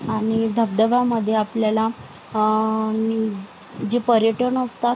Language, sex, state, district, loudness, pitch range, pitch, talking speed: Marathi, female, Maharashtra, Sindhudurg, -21 LUFS, 220-235 Hz, 220 Hz, 95 wpm